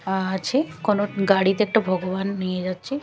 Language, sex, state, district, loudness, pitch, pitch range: Bengali, female, Chhattisgarh, Raipur, -23 LUFS, 195 Hz, 185-210 Hz